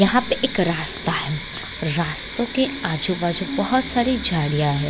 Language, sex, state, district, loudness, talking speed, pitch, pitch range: Hindi, female, Bihar, Gopalganj, -21 LUFS, 145 wpm, 180 Hz, 155-250 Hz